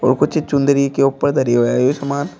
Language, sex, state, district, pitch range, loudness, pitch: Hindi, male, Uttar Pradesh, Shamli, 130-145 Hz, -16 LUFS, 140 Hz